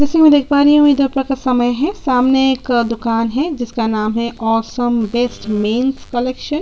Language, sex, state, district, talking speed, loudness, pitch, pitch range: Hindi, female, Chhattisgarh, Sukma, 215 wpm, -15 LUFS, 250 Hz, 230-280 Hz